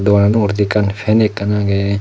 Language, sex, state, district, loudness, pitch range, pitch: Chakma, male, Tripura, Dhalai, -15 LUFS, 100-105 Hz, 100 Hz